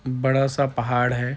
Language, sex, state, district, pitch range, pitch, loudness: Hindi, male, Uttar Pradesh, Muzaffarnagar, 125-135 Hz, 130 Hz, -22 LUFS